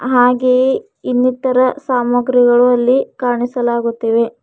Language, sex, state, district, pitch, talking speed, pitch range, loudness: Kannada, female, Karnataka, Bidar, 245 Hz, 70 wpm, 240-255 Hz, -14 LUFS